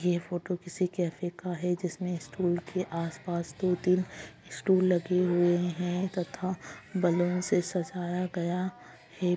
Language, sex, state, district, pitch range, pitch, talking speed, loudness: Magahi, female, Bihar, Gaya, 175-185 Hz, 180 Hz, 135 wpm, -30 LUFS